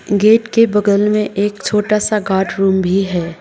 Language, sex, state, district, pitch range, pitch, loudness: Hindi, female, Sikkim, Gangtok, 195-210 Hz, 205 Hz, -14 LUFS